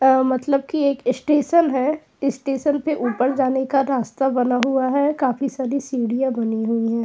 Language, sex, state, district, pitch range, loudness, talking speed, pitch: Hindi, female, Uttar Pradesh, Jyotiba Phule Nagar, 250-280 Hz, -20 LUFS, 180 wpm, 265 Hz